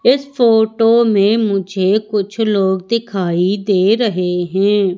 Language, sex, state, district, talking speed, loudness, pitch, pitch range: Hindi, female, Madhya Pradesh, Umaria, 120 wpm, -15 LUFS, 205 Hz, 190-225 Hz